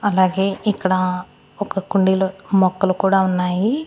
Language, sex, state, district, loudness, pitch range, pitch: Telugu, female, Andhra Pradesh, Annamaya, -19 LUFS, 185-195 Hz, 190 Hz